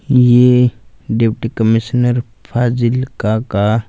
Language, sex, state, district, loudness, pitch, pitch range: Hindi, male, Punjab, Fazilka, -14 LUFS, 120 Hz, 110-125 Hz